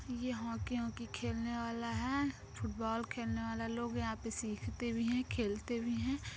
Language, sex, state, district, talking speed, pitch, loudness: Bhojpuri, female, Uttar Pradesh, Deoria, 170 wpm, 225 Hz, -39 LUFS